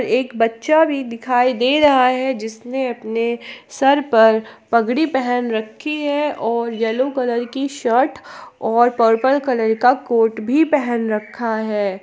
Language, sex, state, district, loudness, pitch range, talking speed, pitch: Hindi, female, Jharkhand, Palamu, -18 LUFS, 230-270 Hz, 145 wpm, 245 Hz